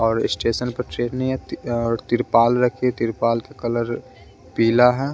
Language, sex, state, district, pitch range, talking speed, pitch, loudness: Hindi, male, Bihar, West Champaran, 115-125 Hz, 150 wpm, 120 Hz, -21 LUFS